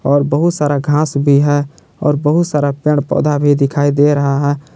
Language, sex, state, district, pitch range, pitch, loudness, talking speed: Hindi, male, Jharkhand, Palamu, 145-150 Hz, 145 Hz, -14 LUFS, 200 wpm